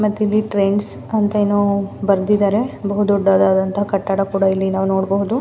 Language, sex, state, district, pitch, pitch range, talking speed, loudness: Kannada, female, Karnataka, Mysore, 200 Hz, 195-205 Hz, 135 wpm, -17 LUFS